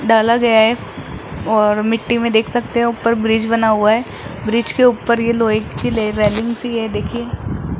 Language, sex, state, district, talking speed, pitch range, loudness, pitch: Hindi, male, Rajasthan, Jaipur, 190 wpm, 215-235 Hz, -16 LUFS, 225 Hz